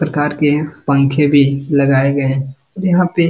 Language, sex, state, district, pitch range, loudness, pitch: Hindi, male, Bihar, Jamui, 140-155 Hz, -14 LUFS, 145 Hz